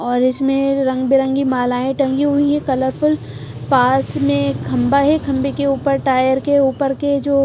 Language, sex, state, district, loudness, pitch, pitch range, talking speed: Hindi, female, Punjab, Pathankot, -16 LUFS, 270 Hz, 260-280 Hz, 175 wpm